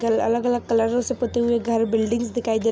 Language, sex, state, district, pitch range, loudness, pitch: Hindi, female, Jharkhand, Sahebganj, 225-240 Hz, -22 LUFS, 235 Hz